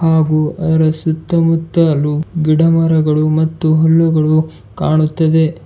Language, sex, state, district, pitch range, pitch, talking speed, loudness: Kannada, male, Karnataka, Bidar, 155-165 Hz, 160 Hz, 85 wpm, -13 LUFS